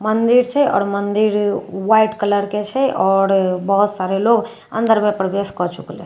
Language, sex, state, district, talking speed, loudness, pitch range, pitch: Maithili, female, Bihar, Katihar, 180 wpm, -17 LUFS, 195-220 Hz, 205 Hz